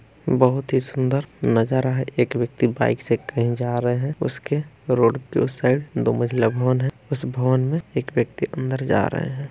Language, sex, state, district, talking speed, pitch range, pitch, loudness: Hindi, male, Bihar, East Champaran, 195 wpm, 120-140 Hz, 130 Hz, -22 LUFS